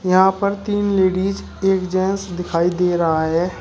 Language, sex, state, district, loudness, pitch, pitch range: Hindi, male, Uttar Pradesh, Shamli, -19 LUFS, 185 Hz, 180-195 Hz